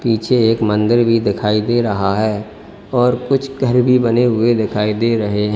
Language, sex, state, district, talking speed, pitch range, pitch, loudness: Hindi, male, Uttar Pradesh, Lalitpur, 195 wpm, 105-120 Hz, 115 Hz, -15 LUFS